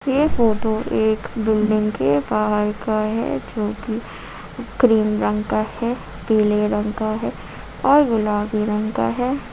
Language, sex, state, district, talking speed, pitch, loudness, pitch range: Hindi, female, Jharkhand, Ranchi, 145 wpm, 215 Hz, -20 LUFS, 210-225 Hz